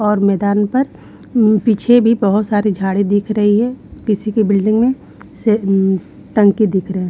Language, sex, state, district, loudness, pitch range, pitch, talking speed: Hindi, female, Haryana, Rohtak, -15 LUFS, 200-220 Hz, 210 Hz, 185 wpm